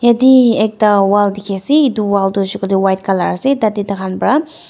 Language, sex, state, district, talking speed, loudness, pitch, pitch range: Nagamese, female, Nagaland, Dimapur, 230 wpm, -13 LUFS, 205 Hz, 195-240 Hz